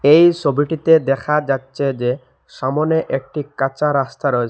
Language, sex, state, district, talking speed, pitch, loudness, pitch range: Bengali, male, Assam, Hailakandi, 135 wpm, 140 Hz, -18 LUFS, 135-150 Hz